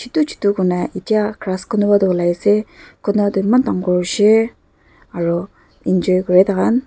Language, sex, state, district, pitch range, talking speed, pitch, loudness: Nagamese, female, Nagaland, Dimapur, 185-215 Hz, 155 wpm, 200 Hz, -17 LUFS